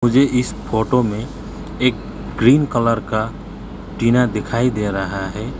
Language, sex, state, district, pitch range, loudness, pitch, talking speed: Hindi, male, West Bengal, Alipurduar, 110-125 Hz, -18 LUFS, 115 Hz, 140 wpm